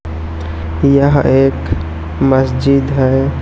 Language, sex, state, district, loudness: Hindi, male, Chhattisgarh, Raipur, -13 LUFS